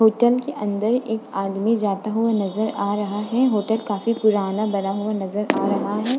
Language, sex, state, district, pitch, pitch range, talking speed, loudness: Hindi, female, Uttar Pradesh, Budaun, 215 Hz, 205-230 Hz, 195 wpm, -22 LUFS